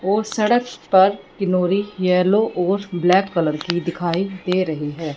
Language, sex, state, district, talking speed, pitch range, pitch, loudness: Hindi, female, Punjab, Fazilka, 150 wpm, 175-200 Hz, 185 Hz, -19 LUFS